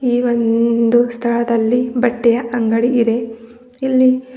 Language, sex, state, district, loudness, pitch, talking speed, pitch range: Kannada, female, Karnataka, Bidar, -16 LUFS, 235 Hz, 80 wpm, 230-245 Hz